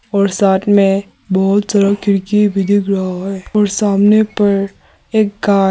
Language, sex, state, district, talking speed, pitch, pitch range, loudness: Hindi, male, Arunachal Pradesh, Papum Pare, 160 wpm, 200 Hz, 195-205 Hz, -14 LUFS